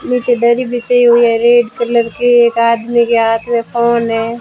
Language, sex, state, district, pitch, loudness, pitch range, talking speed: Hindi, female, Rajasthan, Bikaner, 235 Hz, -12 LUFS, 230-240 Hz, 205 wpm